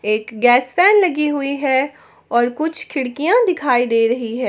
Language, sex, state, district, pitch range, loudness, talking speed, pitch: Hindi, female, Jharkhand, Ranchi, 245-310 Hz, -16 LUFS, 175 wpm, 265 Hz